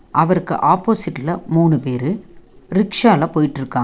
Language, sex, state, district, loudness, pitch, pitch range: Tamil, female, Tamil Nadu, Nilgiris, -17 LUFS, 165 Hz, 135-190 Hz